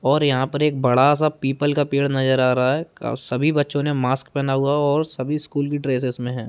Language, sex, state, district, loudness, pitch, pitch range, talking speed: Hindi, male, Bihar, Darbhanga, -20 LUFS, 140 Hz, 130-145 Hz, 250 wpm